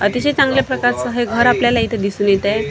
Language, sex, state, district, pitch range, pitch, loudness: Marathi, female, Maharashtra, Washim, 205-250 Hz, 240 Hz, -16 LUFS